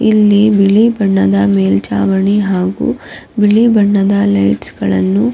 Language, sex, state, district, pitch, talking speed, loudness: Kannada, female, Karnataka, Raichur, 195 Hz, 110 wpm, -11 LUFS